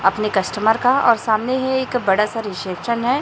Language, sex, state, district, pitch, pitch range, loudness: Hindi, male, Chhattisgarh, Raipur, 225 Hz, 205-250 Hz, -18 LUFS